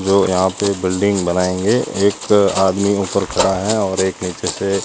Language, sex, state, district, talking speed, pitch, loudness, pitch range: Hindi, male, Rajasthan, Jaisalmer, 185 wpm, 95 Hz, -17 LUFS, 90-100 Hz